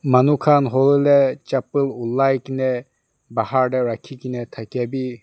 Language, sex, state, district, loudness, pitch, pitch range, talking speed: Nagamese, male, Nagaland, Dimapur, -19 LUFS, 130 Hz, 125-135 Hz, 150 wpm